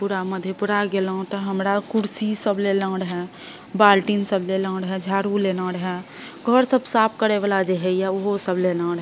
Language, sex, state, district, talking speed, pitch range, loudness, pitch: Maithili, female, Bihar, Madhepura, 195 wpm, 190-205 Hz, -22 LUFS, 195 Hz